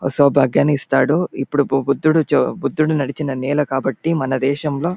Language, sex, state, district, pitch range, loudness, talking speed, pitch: Telugu, male, Andhra Pradesh, Anantapur, 135-155 Hz, -18 LUFS, 135 wpm, 140 Hz